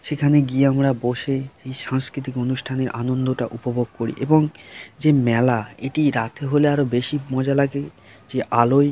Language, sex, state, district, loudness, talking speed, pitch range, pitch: Bengali, male, West Bengal, Kolkata, -21 LUFS, 150 wpm, 120-140 Hz, 130 Hz